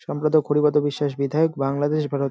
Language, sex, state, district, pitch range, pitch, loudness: Bengali, male, West Bengal, Jalpaiguri, 140-150 Hz, 145 Hz, -22 LUFS